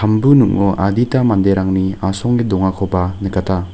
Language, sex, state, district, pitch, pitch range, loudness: Garo, male, Meghalaya, North Garo Hills, 95 Hz, 95-110 Hz, -15 LUFS